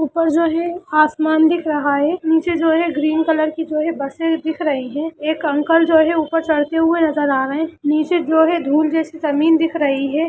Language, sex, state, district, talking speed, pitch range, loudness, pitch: Hindi, female, Bihar, Lakhisarai, 215 wpm, 300-325 Hz, -17 LUFS, 320 Hz